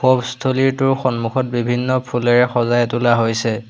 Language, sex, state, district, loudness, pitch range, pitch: Assamese, male, Assam, Hailakandi, -17 LUFS, 120-130 Hz, 120 Hz